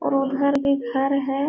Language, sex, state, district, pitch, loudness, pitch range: Hindi, female, Bihar, Supaul, 275 Hz, -22 LUFS, 270-280 Hz